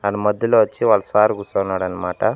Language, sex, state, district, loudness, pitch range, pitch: Telugu, male, Andhra Pradesh, Annamaya, -18 LUFS, 95-105 Hz, 100 Hz